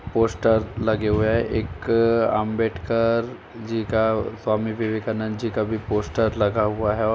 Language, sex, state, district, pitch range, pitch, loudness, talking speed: Hindi, male, Uttar Pradesh, Jalaun, 110-115 Hz, 110 Hz, -23 LUFS, 150 wpm